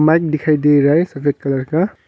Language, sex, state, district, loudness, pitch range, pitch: Hindi, male, Arunachal Pradesh, Longding, -15 LUFS, 140-160 Hz, 150 Hz